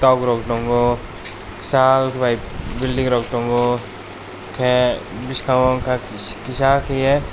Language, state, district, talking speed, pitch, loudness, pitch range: Kokborok, Tripura, West Tripura, 105 wpm, 120 Hz, -19 LUFS, 115-130 Hz